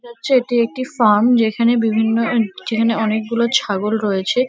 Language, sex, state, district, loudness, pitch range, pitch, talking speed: Bengali, female, West Bengal, North 24 Parganas, -17 LUFS, 220-245 Hz, 230 Hz, 145 wpm